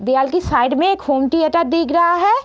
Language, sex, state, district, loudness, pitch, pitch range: Hindi, female, Bihar, East Champaran, -16 LUFS, 330 Hz, 275-345 Hz